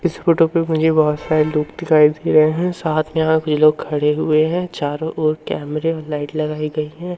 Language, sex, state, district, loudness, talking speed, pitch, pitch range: Hindi, male, Madhya Pradesh, Umaria, -18 LUFS, 215 wpm, 155 Hz, 150-165 Hz